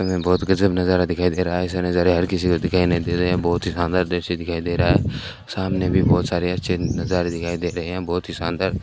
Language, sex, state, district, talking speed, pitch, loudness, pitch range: Hindi, male, Rajasthan, Bikaner, 260 wpm, 90 Hz, -21 LUFS, 85-90 Hz